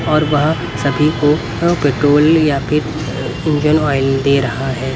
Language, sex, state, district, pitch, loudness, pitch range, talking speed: Hindi, male, Haryana, Rohtak, 145 Hz, -15 LUFS, 135-155 Hz, 145 wpm